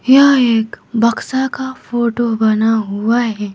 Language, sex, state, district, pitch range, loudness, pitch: Hindi, female, Jharkhand, Garhwa, 220-260 Hz, -15 LUFS, 235 Hz